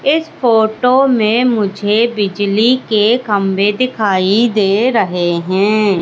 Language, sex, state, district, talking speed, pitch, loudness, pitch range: Hindi, female, Madhya Pradesh, Katni, 110 wpm, 215 Hz, -13 LUFS, 200-240 Hz